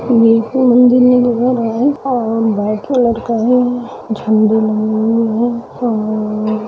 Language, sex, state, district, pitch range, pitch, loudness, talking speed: Hindi, female, Bihar, Gopalganj, 220-245 Hz, 230 Hz, -14 LUFS, 110 wpm